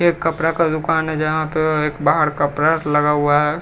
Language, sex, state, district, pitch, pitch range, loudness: Hindi, female, Bihar, Patna, 155 Hz, 150-160 Hz, -18 LUFS